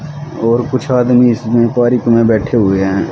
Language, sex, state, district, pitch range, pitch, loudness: Hindi, male, Haryana, Rohtak, 115-125 Hz, 120 Hz, -12 LUFS